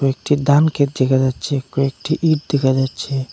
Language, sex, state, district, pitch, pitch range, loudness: Bengali, male, Assam, Hailakandi, 140 Hz, 130-145 Hz, -18 LUFS